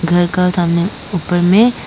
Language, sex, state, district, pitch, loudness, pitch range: Hindi, female, Arunachal Pradesh, Lower Dibang Valley, 175 Hz, -14 LUFS, 175-180 Hz